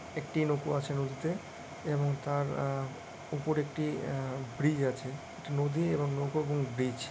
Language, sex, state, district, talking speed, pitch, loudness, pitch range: Bengali, male, West Bengal, Dakshin Dinajpur, 150 wpm, 145 Hz, -34 LUFS, 135-150 Hz